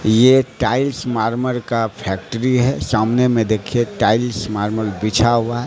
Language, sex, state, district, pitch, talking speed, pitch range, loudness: Hindi, male, Bihar, Katihar, 115 Hz, 135 wpm, 110-125 Hz, -17 LUFS